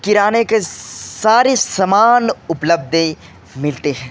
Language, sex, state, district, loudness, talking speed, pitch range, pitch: Hindi, male, Bihar, Kishanganj, -15 LUFS, 115 wpm, 150-220 Hz, 175 Hz